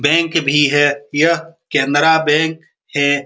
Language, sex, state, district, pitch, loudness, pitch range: Hindi, male, Bihar, Supaul, 150 Hz, -15 LUFS, 145-160 Hz